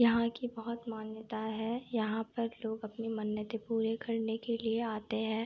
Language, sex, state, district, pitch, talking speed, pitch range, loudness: Hindi, female, Uttar Pradesh, Etah, 225 Hz, 175 wpm, 220-230 Hz, -36 LUFS